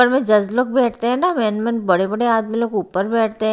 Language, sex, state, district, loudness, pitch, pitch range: Hindi, female, Haryana, Rohtak, -18 LUFS, 230 Hz, 215-245 Hz